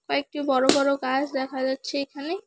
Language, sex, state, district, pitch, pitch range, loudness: Bengali, female, West Bengal, Alipurduar, 275 Hz, 265-285 Hz, -25 LUFS